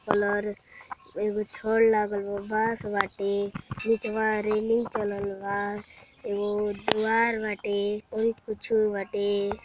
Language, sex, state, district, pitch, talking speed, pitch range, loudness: Bhojpuri, male, Uttar Pradesh, Deoria, 210 Hz, 105 wpm, 205-220 Hz, -28 LUFS